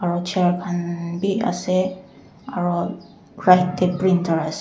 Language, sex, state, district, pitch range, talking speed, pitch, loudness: Nagamese, female, Nagaland, Dimapur, 175-185 Hz, 115 wpm, 180 Hz, -21 LUFS